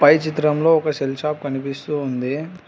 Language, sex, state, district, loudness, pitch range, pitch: Telugu, female, Telangana, Hyderabad, -20 LUFS, 140-155 Hz, 150 Hz